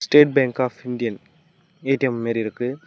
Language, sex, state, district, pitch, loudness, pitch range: Tamil, male, Tamil Nadu, Namakkal, 130 Hz, -21 LUFS, 120-150 Hz